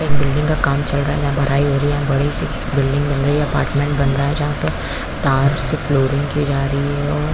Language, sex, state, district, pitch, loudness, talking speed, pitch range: Hindi, female, Chhattisgarh, Bastar, 140 Hz, -18 LUFS, 270 wpm, 140-145 Hz